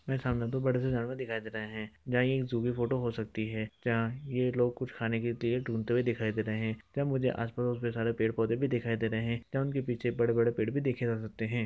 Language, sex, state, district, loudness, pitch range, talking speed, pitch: Hindi, male, Bihar, East Champaran, -32 LUFS, 115-125 Hz, 260 wpm, 120 Hz